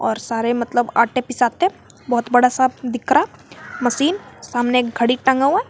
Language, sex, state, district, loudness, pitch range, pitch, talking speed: Hindi, female, Jharkhand, Garhwa, -18 LUFS, 240-265 Hz, 245 Hz, 190 wpm